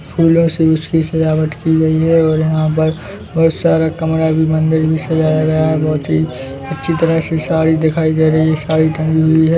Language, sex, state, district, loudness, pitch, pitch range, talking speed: Hindi, male, Chhattisgarh, Bilaspur, -14 LUFS, 160 Hz, 155-160 Hz, 205 wpm